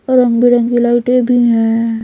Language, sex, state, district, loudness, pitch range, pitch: Hindi, female, Bihar, Patna, -12 LUFS, 230-245 Hz, 240 Hz